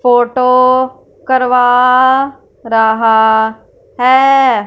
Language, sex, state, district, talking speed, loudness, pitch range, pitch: Hindi, female, Punjab, Fazilka, 50 wpm, -10 LUFS, 230-260 Hz, 250 Hz